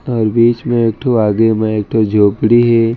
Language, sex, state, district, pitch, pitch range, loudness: Chhattisgarhi, male, Chhattisgarh, Raigarh, 115 Hz, 110-120 Hz, -13 LUFS